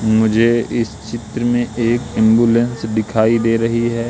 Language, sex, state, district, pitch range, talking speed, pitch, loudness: Hindi, male, Madhya Pradesh, Katni, 110-120 Hz, 145 wpm, 115 Hz, -16 LUFS